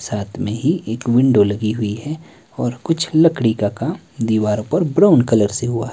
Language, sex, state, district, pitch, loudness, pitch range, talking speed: Hindi, male, Himachal Pradesh, Shimla, 120 Hz, -17 LUFS, 110-145 Hz, 205 wpm